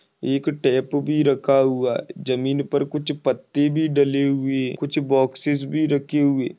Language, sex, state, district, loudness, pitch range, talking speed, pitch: Hindi, male, Maharashtra, Dhule, -21 LUFS, 135-150 Hz, 165 wpm, 140 Hz